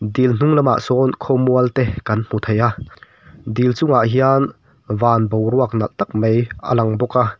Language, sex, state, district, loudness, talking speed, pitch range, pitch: Mizo, male, Mizoram, Aizawl, -17 LUFS, 180 wpm, 110-130 Hz, 120 Hz